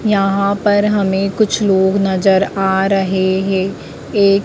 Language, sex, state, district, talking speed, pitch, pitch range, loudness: Hindi, female, Madhya Pradesh, Dhar, 135 wpm, 195 Hz, 190-200 Hz, -15 LUFS